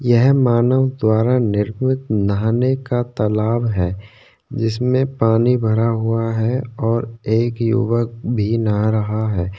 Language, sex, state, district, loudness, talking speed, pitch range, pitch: Hindi, male, Maharashtra, Chandrapur, -18 LUFS, 125 wpm, 110-120 Hz, 115 Hz